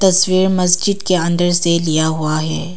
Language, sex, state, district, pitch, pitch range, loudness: Hindi, female, Arunachal Pradesh, Papum Pare, 175 Hz, 160-185 Hz, -15 LUFS